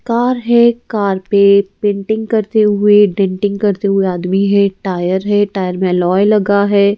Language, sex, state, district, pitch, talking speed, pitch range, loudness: Hindi, female, Madhya Pradesh, Bhopal, 200 Hz, 165 wpm, 195-210 Hz, -13 LUFS